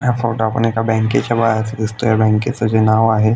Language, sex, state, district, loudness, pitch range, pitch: Marathi, male, Maharashtra, Aurangabad, -16 LUFS, 110-115 Hz, 110 Hz